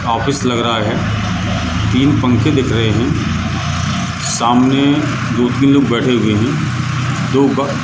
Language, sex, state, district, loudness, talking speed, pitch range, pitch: Hindi, male, Madhya Pradesh, Katni, -14 LUFS, 140 wpm, 110-135 Hz, 125 Hz